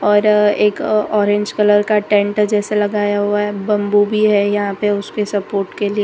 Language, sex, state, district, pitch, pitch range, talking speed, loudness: Hindi, female, Gujarat, Valsad, 205 Hz, 205-210 Hz, 190 wpm, -16 LUFS